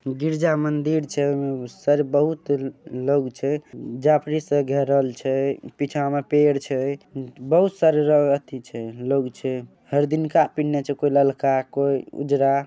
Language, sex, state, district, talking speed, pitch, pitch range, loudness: Maithili, male, Bihar, Saharsa, 165 wpm, 140 Hz, 135-150 Hz, -22 LUFS